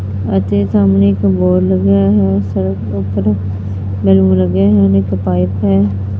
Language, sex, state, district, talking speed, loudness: Punjabi, female, Punjab, Fazilka, 145 wpm, -13 LUFS